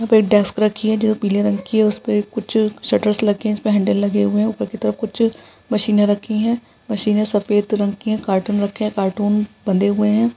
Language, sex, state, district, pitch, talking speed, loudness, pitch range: Hindi, female, Rajasthan, Churu, 210 Hz, 225 wpm, -18 LUFS, 205-220 Hz